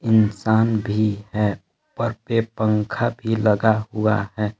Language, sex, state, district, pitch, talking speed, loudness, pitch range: Hindi, male, Jharkhand, Palamu, 110 Hz, 130 wpm, -21 LUFS, 105-110 Hz